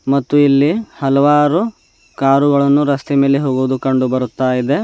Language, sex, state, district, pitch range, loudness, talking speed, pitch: Kannada, male, Karnataka, Bidar, 130-145 Hz, -14 LUFS, 125 wpm, 140 Hz